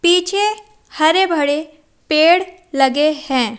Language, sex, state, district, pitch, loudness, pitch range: Hindi, female, Madhya Pradesh, Umaria, 310 Hz, -16 LUFS, 295-360 Hz